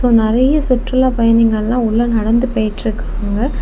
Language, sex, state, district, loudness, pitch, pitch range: Tamil, female, Tamil Nadu, Kanyakumari, -15 LUFS, 230 Hz, 220-250 Hz